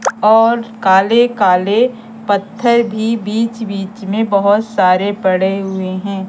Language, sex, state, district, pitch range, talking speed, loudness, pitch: Hindi, female, Madhya Pradesh, Katni, 195-225 Hz, 145 wpm, -14 LUFS, 210 Hz